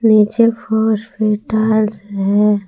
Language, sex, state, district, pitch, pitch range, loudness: Hindi, female, Jharkhand, Palamu, 215 Hz, 210-220 Hz, -15 LUFS